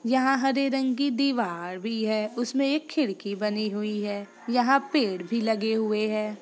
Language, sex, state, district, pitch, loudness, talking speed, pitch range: Hindi, female, Bihar, East Champaran, 225 Hz, -26 LUFS, 185 wpm, 210-270 Hz